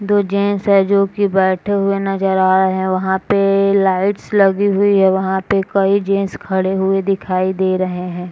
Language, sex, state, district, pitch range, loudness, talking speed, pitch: Hindi, female, Bihar, Madhepura, 190-200 Hz, -15 LUFS, 195 wpm, 195 Hz